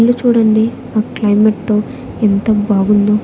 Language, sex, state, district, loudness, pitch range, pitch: Telugu, female, Andhra Pradesh, Annamaya, -13 LUFS, 210-220 Hz, 215 Hz